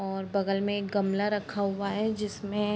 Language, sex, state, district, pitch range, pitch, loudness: Hindi, female, Bihar, Muzaffarpur, 195-210 Hz, 200 Hz, -30 LUFS